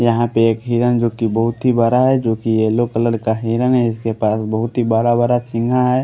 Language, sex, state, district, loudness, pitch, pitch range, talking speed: Hindi, male, Haryana, Rohtak, -16 LUFS, 115 Hz, 115-120 Hz, 230 wpm